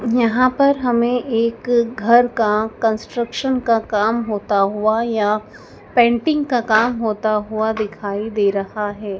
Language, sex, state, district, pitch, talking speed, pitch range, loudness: Hindi, female, Madhya Pradesh, Dhar, 225 Hz, 135 wpm, 215-240 Hz, -18 LUFS